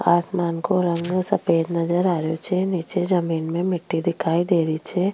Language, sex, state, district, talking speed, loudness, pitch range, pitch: Rajasthani, female, Rajasthan, Nagaur, 185 wpm, -22 LUFS, 165-185 Hz, 175 Hz